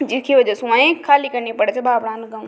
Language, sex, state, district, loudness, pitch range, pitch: Rajasthani, female, Rajasthan, Nagaur, -16 LUFS, 230-285 Hz, 255 Hz